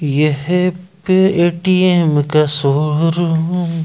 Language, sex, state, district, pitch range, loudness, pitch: Hindi, male, Madhya Pradesh, Bhopal, 150-180 Hz, -14 LUFS, 170 Hz